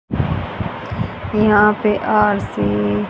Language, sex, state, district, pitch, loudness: Hindi, female, Haryana, Charkhi Dadri, 205 Hz, -17 LUFS